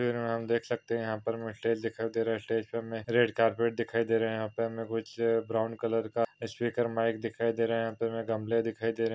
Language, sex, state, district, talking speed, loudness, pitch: Hindi, male, Maharashtra, Pune, 260 wpm, -31 LUFS, 115 Hz